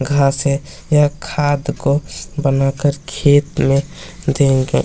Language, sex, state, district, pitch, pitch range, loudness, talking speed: Hindi, male, Chhattisgarh, Kabirdham, 145 Hz, 140-150 Hz, -17 LUFS, 110 wpm